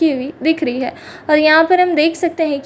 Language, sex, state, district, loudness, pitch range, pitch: Hindi, female, Chhattisgarh, Rajnandgaon, -15 LUFS, 290-325 Hz, 310 Hz